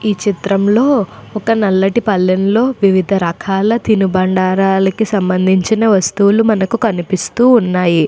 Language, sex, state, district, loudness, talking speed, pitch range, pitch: Telugu, female, Andhra Pradesh, Anantapur, -13 LUFS, 105 wpm, 185-220 Hz, 200 Hz